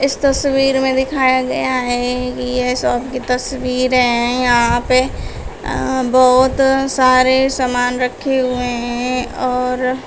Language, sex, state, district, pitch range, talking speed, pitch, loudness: Hindi, female, Uttar Pradesh, Shamli, 250-260 Hz, 130 wpm, 255 Hz, -15 LUFS